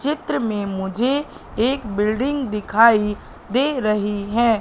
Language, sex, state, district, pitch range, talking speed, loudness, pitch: Hindi, female, Madhya Pradesh, Katni, 210-265 Hz, 115 wpm, -20 LUFS, 225 Hz